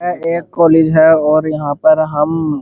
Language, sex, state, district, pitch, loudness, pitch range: Hindi, male, Uttar Pradesh, Muzaffarnagar, 160 Hz, -12 LUFS, 155-165 Hz